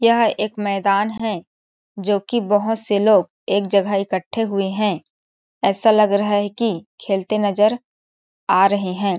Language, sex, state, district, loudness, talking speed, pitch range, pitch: Hindi, female, Chhattisgarh, Balrampur, -19 LUFS, 150 wpm, 195-220 Hz, 205 Hz